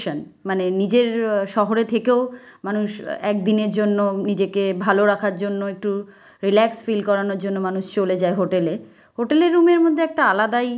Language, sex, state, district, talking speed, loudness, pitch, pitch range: Bengali, female, West Bengal, Kolkata, 155 wpm, -20 LUFS, 205 Hz, 195-230 Hz